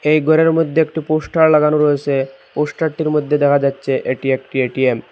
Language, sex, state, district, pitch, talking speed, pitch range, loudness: Bengali, male, Assam, Hailakandi, 150 Hz, 190 wpm, 135-155 Hz, -16 LUFS